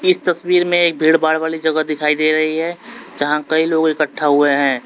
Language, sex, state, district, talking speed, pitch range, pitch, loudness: Hindi, male, Uttar Pradesh, Lalitpur, 220 wpm, 150-165 Hz, 160 Hz, -16 LUFS